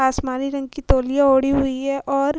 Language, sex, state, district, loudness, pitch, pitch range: Hindi, female, Uttar Pradesh, Hamirpur, -20 LUFS, 275 Hz, 265-275 Hz